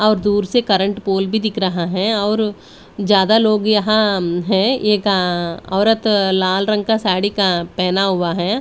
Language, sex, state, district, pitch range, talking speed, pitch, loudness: Hindi, female, Delhi, New Delhi, 190-215 Hz, 165 wpm, 200 Hz, -16 LUFS